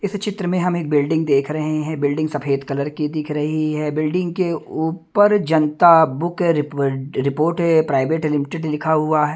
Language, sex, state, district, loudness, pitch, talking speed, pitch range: Hindi, male, Delhi, New Delhi, -19 LUFS, 155 Hz, 175 wpm, 150-165 Hz